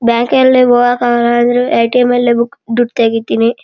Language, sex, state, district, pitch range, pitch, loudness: Kannada, male, Karnataka, Shimoga, 235-245 Hz, 240 Hz, -11 LUFS